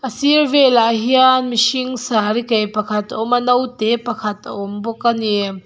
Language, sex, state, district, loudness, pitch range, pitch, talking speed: Mizo, female, Mizoram, Aizawl, -16 LUFS, 215-255 Hz, 235 Hz, 180 wpm